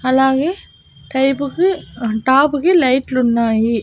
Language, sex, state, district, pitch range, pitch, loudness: Telugu, female, Andhra Pradesh, Annamaya, 240-290 Hz, 265 Hz, -16 LUFS